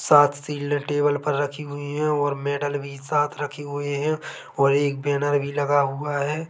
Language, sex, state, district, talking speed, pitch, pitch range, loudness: Hindi, male, Chhattisgarh, Bilaspur, 195 wpm, 145 Hz, 140-145 Hz, -24 LUFS